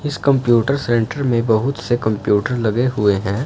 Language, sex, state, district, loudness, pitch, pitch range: Hindi, male, Punjab, Fazilka, -17 LUFS, 120 Hz, 110-135 Hz